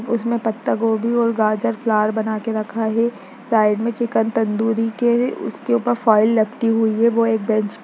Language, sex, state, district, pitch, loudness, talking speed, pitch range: Hindi, female, Bihar, Lakhisarai, 225 Hz, -19 LUFS, 190 wpm, 220-235 Hz